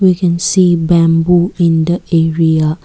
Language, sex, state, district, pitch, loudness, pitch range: English, female, Assam, Kamrup Metropolitan, 170 Hz, -12 LUFS, 165-175 Hz